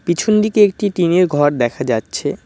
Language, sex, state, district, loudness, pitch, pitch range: Bengali, male, West Bengal, Cooch Behar, -15 LUFS, 175 Hz, 125-205 Hz